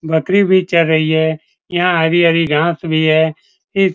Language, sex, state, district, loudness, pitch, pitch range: Hindi, male, Bihar, Supaul, -14 LUFS, 165 Hz, 160-180 Hz